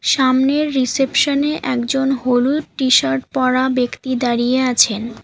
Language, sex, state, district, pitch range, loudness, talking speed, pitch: Bengali, female, West Bengal, Alipurduar, 245-270 Hz, -16 LUFS, 115 wpm, 255 Hz